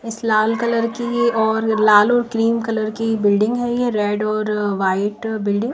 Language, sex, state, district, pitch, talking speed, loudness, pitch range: Hindi, female, Himachal Pradesh, Shimla, 220 Hz, 190 wpm, -18 LUFS, 210-230 Hz